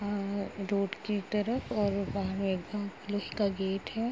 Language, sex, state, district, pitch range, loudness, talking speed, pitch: Hindi, female, Uttar Pradesh, Gorakhpur, 195-210 Hz, -33 LUFS, 160 wpm, 200 Hz